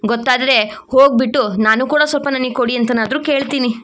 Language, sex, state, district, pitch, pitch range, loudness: Kannada, female, Karnataka, Shimoga, 255 Hz, 235-275 Hz, -14 LUFS